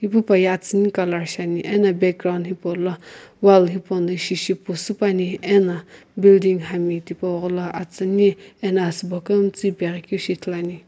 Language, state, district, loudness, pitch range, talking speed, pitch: Sumi, Nagaland, Kohima, -20 LUFS, 175-195 Hz, 155 wpm, 185 Hz